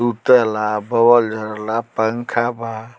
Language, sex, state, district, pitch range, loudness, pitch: Bhojpuri, male, Bihar, Muzaffarpur, 110-120 Hz, -17 LUFS, 115 Hz